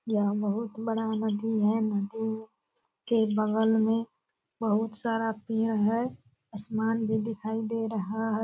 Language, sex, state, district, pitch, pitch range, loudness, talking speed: Hindi, female, Bihar, Purnia, 220 Hz, 215-225 Hz, -29 LUFS, 135 wpm